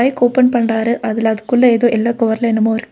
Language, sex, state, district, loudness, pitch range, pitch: Tamil, female, Tamil Nadu, Nilgiris, -14 LUFS, 225-245 Hz, 235 Hz